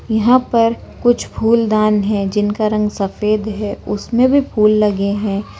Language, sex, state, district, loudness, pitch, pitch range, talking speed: Hindi, female, Bihar, Saran, -16 LUFS, 215 Hz, 205-230 Hz, 150 wpm